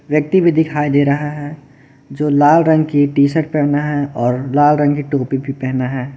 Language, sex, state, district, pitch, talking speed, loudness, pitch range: Hindi, male, Jharkhand, Garhwa, 145 Hz, 195 wpm, -15 LUFS, 140-150 Hz